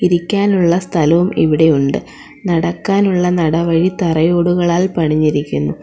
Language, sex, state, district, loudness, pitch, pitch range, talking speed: Malayalam, female, Kerala, Kollam, -14 LUFS, 170 Hz, 160-180 Hz, 70 wpm